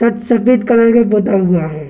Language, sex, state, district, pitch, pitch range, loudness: Hindi, male, Bihar, Gaya, 230 Hz, 190-235 Hz, -12 LUFS